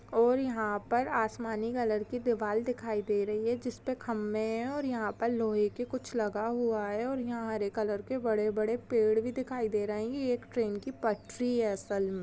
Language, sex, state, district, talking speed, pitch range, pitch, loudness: Hindi, female, Chhattisgarh, Raigarh, 205 wpm, 210-245 Hz, 225 Hz, -32 LUFS